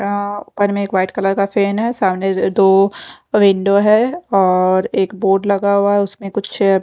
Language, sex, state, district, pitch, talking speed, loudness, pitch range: Hindi, female, Odisha, Khordha, 200 Hz, 185 wpm, -15 LUFS, 195-205 Hz